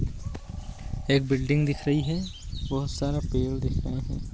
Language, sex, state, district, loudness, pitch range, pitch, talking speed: Magahi, male, Bihar, Jahanabad, -28 LUFS, 105-145 Hz, 135 Hz, 150 wpm